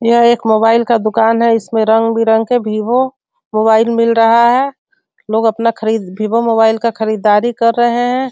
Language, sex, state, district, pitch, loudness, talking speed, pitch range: Hindi, female, Bihar, Sitamarhi, 230 Hz, -13 LUFS, 175 wpm, 220-240 Hz